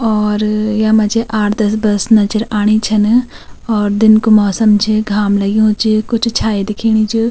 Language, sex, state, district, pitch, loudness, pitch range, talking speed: Garhwali, female, Uttarakhand, Tehri Garhwal, 215 Hz, -13 LUFS, 210-220 Hz, 175 wpm